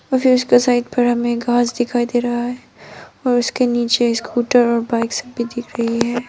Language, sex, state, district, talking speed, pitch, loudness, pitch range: Hindi, female, Arunachal Pradesh, Papum Pare, 200 wpm, 240 Hz, -17 LUFS, 235-245 Hz